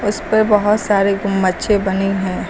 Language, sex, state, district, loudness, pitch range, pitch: Hindi, female, Uttar Pradesh, Lucknow, -16 LUFS, 195-210 Hz, 200 Hz